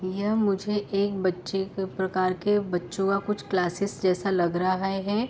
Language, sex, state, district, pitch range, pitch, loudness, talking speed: Hindi, female, Uttar Pradesh, Etah, 185-200 Hz, 195 Hz, -26 LUFS, 170 wpm